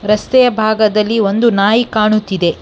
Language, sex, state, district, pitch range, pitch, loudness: Kannada, female, Karnataka, Bangalore, 210-225 Hz, 215 Hz, -12 LUFS